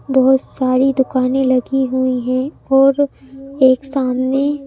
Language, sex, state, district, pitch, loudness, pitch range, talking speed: Hindi, female, Madhya Pradesh, Bhopal, 265 Hz, -16 LUFS, 255-270 Hz, 115 wpm